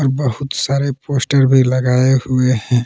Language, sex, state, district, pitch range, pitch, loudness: Hindi, male, Jharkhand, Palamu, 125-140 Hz, 130 Hz, -15 LUFS